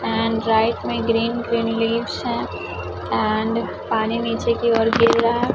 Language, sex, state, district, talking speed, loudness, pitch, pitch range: Hindi, female, Chhattisgarh, Raipur, 160 wpm, -20 LUFS, 225 Hz, 220-230 Hz